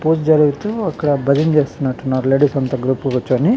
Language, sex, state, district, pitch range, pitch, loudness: Telugu, male, Andhra Pradesh, Chittoor, 130-155 Hz, 140 Hz, -16 LUFS